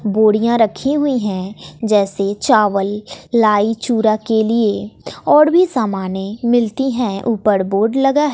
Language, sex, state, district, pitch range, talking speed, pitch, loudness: Hindi, female, Bihar, West Champaran, 205-240 Hz, 135 wpm, 220 Hz, -16 LUFS